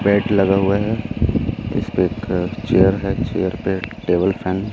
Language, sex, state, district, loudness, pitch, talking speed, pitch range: Hindi, male, Chhattisgarh, Raipur, -19 LUFS, 95 Hz, 165 wpm, 95-105 Hz